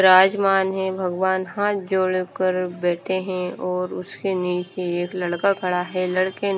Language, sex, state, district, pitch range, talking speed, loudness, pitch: Hindi, female, Haryana, Rohtak, 180-190 Hz, 145 wpm, -22 LUFS, 185 Hz